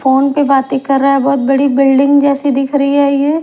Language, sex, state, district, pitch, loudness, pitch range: Hindi, female, Maharashtra, Mumbai Suburban, 275 Hz, -11 LUFS, 270-285 Hz